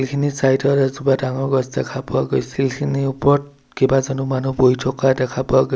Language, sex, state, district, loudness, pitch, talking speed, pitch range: Assamese, male, Assam, Sonitpur, -19 LUFS, 135 Hz, 185 wpm, 130-135 Hz